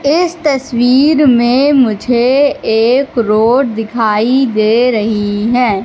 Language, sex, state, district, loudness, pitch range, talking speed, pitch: Hindi, female, Madhya Pradesh, Katni, -11 LUFS, 220-270 Hz, 105 wpm, 245 Hz